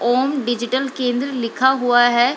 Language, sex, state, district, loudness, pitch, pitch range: Hindi, female, Bihar, Lakhisarai, -18 LUFS, 250 Hz, 240-265 Hz